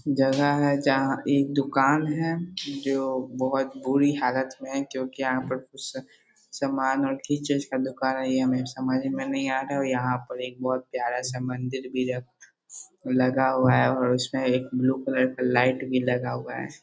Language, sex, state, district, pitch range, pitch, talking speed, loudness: Hindi, male, Bihar, Muzaffarpur, 130-135 Hz, 130 Hz, 170 wpm, -26 LUFS